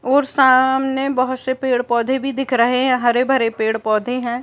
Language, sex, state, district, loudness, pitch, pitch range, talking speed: Hindi, female, Uttar Pradesh, Gorakhpur, -17 LUFS, 255 Hz, 240-265 Hz, 205 wpm